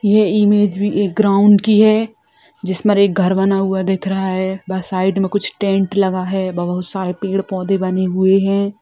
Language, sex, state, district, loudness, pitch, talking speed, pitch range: Hindi, female, Bihar, Sitamarhi, -16 LUFS, 195 Hz, 195 wpm, 190-205 Hz